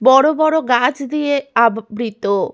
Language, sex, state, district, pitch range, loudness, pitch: Bengali, female, West Bengal, Paschim Medinipur, 230-290 Hz, -16 LUFS, 260 Hz